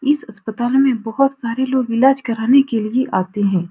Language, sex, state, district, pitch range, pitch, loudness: Hindi, female, Bihar, Supaul, 225-270 Hz, 240 Hz, -17 LUFS